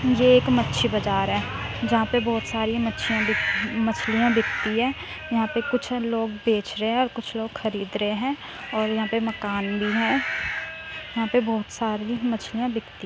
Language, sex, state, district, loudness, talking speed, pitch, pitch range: Hindi, female, Uttar Pradesh, Muzaffarnagar, -24 LUFS, 185 wpm, 225 Hz, 210-235 Hz